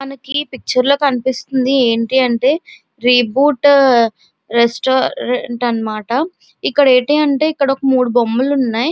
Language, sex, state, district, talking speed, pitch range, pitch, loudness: Telugu, female, Andhra Pradesh, Visakhapatnam, 120 wpm, 240-280 Hz, 260 Hz, -14 LUFS